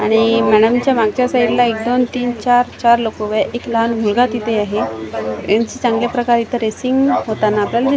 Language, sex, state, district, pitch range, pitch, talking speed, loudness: Marathi, female, Maharashtra, Washim, 215-245 Hz, 230 Hz, 190 wpm, -16 LUFS